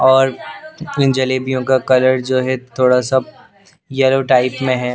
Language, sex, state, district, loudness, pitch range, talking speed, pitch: Hindi, male, Punjab, Pathankot, -15 LUFS, 130-135 Hz, 155 wpm, 130 Hz